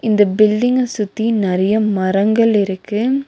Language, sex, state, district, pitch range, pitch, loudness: Tamil, female, Tamil Nadu, Nilgiris, 200-225 Hz, 215 Hz, -15 LUFS